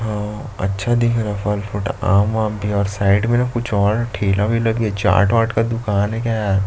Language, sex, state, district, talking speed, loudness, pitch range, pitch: Hindi, male, Chhattisgarh, Jashpur, 225 wpm, -18 LUFS, 100-115 Hz, 105 Hz